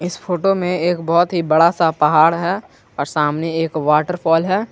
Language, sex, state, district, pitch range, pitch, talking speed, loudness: Hindi, male, Jharkhand, Garhwa, 155-180 Hz, 165 Hz, 190 wpm, -17 LUFS